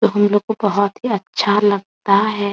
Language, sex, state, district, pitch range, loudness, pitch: Hindi, female, Bihar, Araria, 200-210 Hz, -17 LUFS, 205 Hz